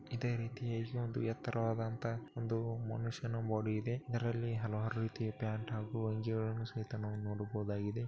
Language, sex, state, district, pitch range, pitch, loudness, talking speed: Kannada, male, Karnataka, Bellary, 110-115 Hz, 115 Hz, -39 LUFS, 135 wpm